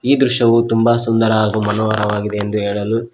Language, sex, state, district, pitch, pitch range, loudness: Kannada, male, Karnataka, Koppal, 110 Hz, 105-115 Hz, -15 LUFS